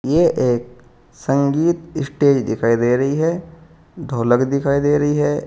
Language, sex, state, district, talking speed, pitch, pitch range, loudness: Hindi, male, Uttar Pradesh, Saharanpur, 145 wpm, 140 Hz, 125-155 Hz, -18 LUFS